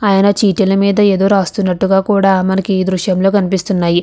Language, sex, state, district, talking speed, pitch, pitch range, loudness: Telugu, female, Andhra Pradesh, Visakhapatnam, 150 wpm, 195 Hz, 190-200 Hz, -13 LUFS